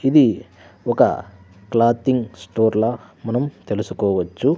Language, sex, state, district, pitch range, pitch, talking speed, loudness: Telugu, male, Andhra Pradesh, Sri Satya Sai, 95-120 Hz, 110 Hz, 90 wpm, -20 LUFS